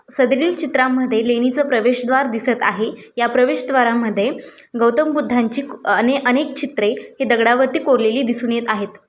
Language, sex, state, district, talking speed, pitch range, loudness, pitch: Marathi, female, Maharashtra, Aurangabad, 125 wpm, 235-270 Hz, -17 LUFS, 250 Hz